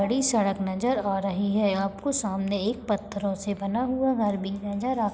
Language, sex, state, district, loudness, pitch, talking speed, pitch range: Hindi, female, Uttarakhand, Tehri Garhwal, -27 LUFS, 205 Hz, 210 wpm, 195-235 Hz